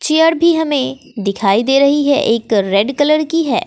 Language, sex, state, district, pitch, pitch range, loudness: Hindi, female, Bihar, West Champaran, 280 Hz, 225-305 Hz, -14 LUFS